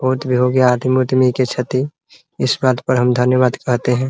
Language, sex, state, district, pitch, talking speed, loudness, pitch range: Hindi, male, Bihar, Muzaffarpur, 130 Hz, 235 wpm, -16 LUFS, 125-130 Hz